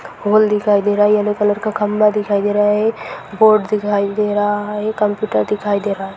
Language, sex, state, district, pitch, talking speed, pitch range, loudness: Hindi, female, Bihar, Sitamarhi, 210 Hz, 235 wpm, 205-210 Hz, -16 LUFS